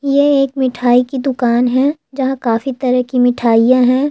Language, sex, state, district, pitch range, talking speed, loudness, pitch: Hindi, female, Andhra Pradesh, Chittoor, 245-270 Hz, 175 wpm, -14 LUFS, 255 Hz